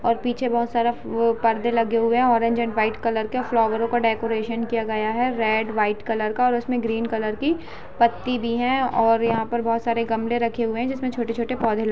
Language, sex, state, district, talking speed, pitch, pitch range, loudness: Hindi, female, Uttar Pradesh, Budaun, 235 wpm, 230 Hz, 225-240 Hz, -22 LUFS